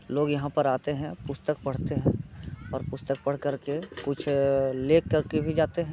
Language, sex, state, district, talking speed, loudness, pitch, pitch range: Hindi, male, Bihar, Muzaffarpur, 180 wpm, -28 LUFS, 145 Hz, 135-150 Hz